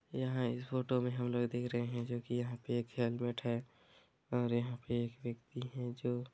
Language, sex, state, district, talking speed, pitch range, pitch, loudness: Hindi, male, Chhattisgarh, Raigarh, 210 wpm, 120-125 Hz, 120 Hz, -38 LUFS